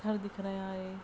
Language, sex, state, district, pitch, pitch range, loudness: Hindi, female, Bihar, Jahanabad, 195 Hz, 190-205 Hz, -38 LUFS